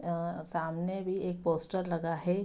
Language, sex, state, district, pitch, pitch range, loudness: Hindi, female, Bihar, Saharsa, 170 Hz, 165-185 Hz, -34 LUFS